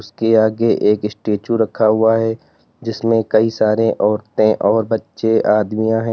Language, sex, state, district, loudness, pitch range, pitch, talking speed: Hindi, male, Uttar Pradesh, Lalitpur, -16 LUFS, 110-115 Hz, 110 Hz, 145 wpm